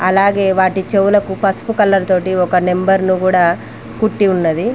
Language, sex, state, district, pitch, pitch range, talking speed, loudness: Telugu, female, Telangana, Mahabubabad, 190 Hz, 180-195 Hz, 140 wpm, -14 LUFS